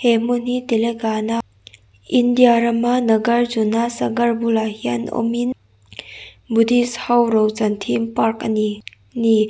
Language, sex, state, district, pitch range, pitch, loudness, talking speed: Mizo, female, Mizoram, Aizawl, 215-240 Hz, 225 Hz, -18 LUFS, 120 wpm